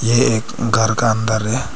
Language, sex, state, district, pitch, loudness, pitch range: Hindi, male, Arunachal Pradesh, Papum Pare, 115 Hz, -17 LUFS, 110-120 Hz